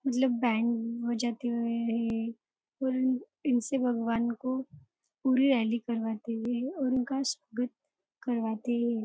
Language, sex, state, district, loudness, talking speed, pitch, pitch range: Hindi, female, Maharashtra, Nagpur, -31 LUFS, 115 wpm, 240 Hz, 230-260 Hz